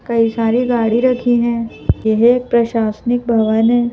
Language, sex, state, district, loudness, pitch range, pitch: Hindi, female, Madhya Pradesh, Bhopal, -15 LUFS, 225-240 Hz, 235 Hz